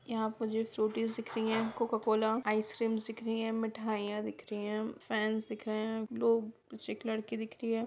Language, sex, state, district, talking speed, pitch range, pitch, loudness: Hindi, female, Bihar, Sitamarhi, 205 wpm, 220-225 Hz, 225 Hz, -35 LUFS